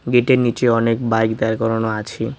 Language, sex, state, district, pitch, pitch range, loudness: Bengali, male, West Bengal, Cooch Behar, 115 Hz, 110-120 Hz, -18 LUFS